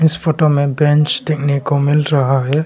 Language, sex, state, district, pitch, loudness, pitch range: Hindi, male, Arunachal Pradesh, Longding, 150 Hz, -15 LUFS, 140-155 Hz